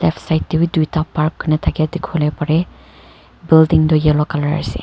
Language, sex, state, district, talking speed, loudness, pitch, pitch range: Nagamese, female, Nagaland, Kohima, 160 wpm, -16 LUFS, 155 Hz, 150-160 Hz